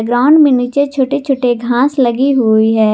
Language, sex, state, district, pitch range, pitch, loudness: Hindi, female, Jharkhand, Garhwa, 235-275 Hz, 250 Hz, -12 LUFS